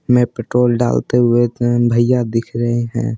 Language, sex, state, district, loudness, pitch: Hindi, male, Bihar, Patna, -16 LUFS, 120 Hz